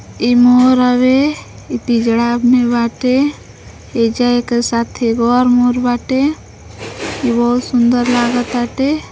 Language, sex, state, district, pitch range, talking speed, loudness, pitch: Bhojpuri, female, Uttar Pradesh, Deoria, 240-250 Hz, 120 wpm, -14 LUFS, 245 Hz